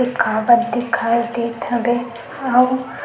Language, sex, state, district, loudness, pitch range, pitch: Chhattisgarhi, female, Chhattisgarh, Sukma, -18 LUFS, 235-245 Hz, 240 Hz